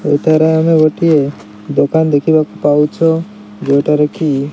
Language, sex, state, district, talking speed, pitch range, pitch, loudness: Odia, male, Odisha, Malkangiri, 120 wpm, 140-160 Hz, 150 Hz, -12 LUFS